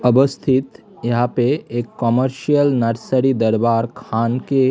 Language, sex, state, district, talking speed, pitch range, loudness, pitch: Hindi, male, Delhi, New Delhi, 125 wpm, 115-130 Hz, -18 LUFS, 125 Hz